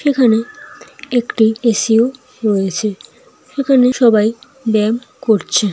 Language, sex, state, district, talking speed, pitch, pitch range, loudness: Bengali, female, West Bengal, Kolkata, 95 wpm, 230 Hz, 220-255 Hz, -15 LUFS